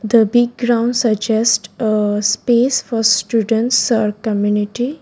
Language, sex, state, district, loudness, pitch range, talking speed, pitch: English, female, Gujarat, Valsad, -16 LUFS, 215-240 Hz, 120 wpm, 225 Hz